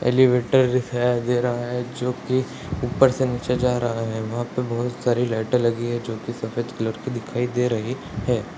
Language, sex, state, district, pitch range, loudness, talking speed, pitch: Hindi, male, Bihar, Purnia, 120-125 Hz, -23 LUFS, 200 wpm, 120 Hz